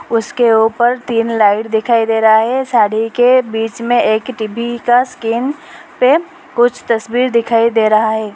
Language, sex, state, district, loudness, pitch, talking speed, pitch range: Hindi, female, Uttar Pradesh, Lalitpur, -13 LUFS, 230 Hz, 165 wpm, 220-245 Hz